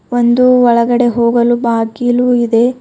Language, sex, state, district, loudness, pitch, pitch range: Kannada, female, Karnataka, Bidar, -11 LUFS, 240 Hz, 235-245 Hz